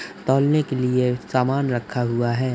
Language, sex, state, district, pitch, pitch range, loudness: Hindi, male, Uttar Pradesh, Budaun, 125 Hz, 120-135 Hz, -21 LUFS